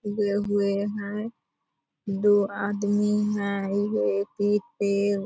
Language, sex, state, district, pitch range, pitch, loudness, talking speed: Hindi, female, Bihar, Purnia, 200-210 Hz, 205 Hz, -25 LUFS, 115 wpm